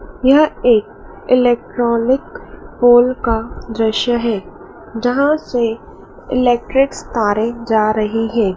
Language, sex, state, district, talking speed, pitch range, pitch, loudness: Hindi, female, Madhya Pradesh, Dhar, 100 wpm, 225-255 Hz, 240 Hz, -15 LUFS